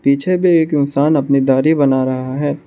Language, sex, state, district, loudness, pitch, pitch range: Hindi, male, Arunachal Pradesh, Lower Dibang Valley, -14 LUFS, 140 Hz, 135-155 Hz